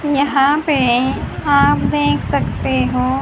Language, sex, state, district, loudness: Hindi, female, Haryana, Charkhi Dadri, -16 LUFS